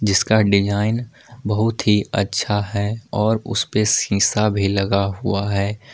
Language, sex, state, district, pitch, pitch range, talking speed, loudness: Hindi, male, Jharkhand, Palamu, 105 Hz, 100-110 Hz, 140 wpm, -19 LUFS